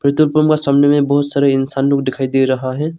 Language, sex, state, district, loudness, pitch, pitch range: Hindi, male, Arunachal Pradesh, Longding, -14 LUFS, 140 Hz, 135-145 Hz